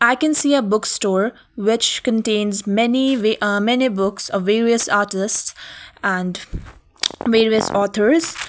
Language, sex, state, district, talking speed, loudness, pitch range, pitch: English, female, Sikkim, Gangtok, 135 wpm, -18 LUFS, 205-240 Hz, 220 Hz